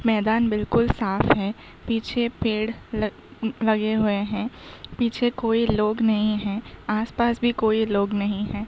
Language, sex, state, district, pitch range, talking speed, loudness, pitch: Hindi, female, Uttar Pradesh, Hamirpur, 210-230 Hz, 140 wpm, -24 LUFS, 220 Hz